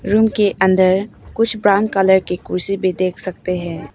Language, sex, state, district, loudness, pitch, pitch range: Hindi, female, Arunachal Pradesh, Papum Pare, -16 LUFS, 190 Hz, 185-205 Hz